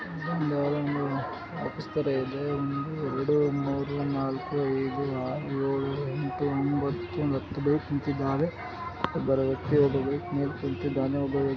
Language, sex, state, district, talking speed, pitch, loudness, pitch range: Kannada, male, Karnataka, Gulbarga, 145 wpm, 140 Hz, -29 LUFS, 135-145 Hz